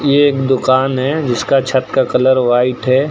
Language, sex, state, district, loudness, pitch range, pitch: Hindi, male, Uttar Pradesh, Lucknow, -14 LUFS, 130-140 Hz, 130 Hz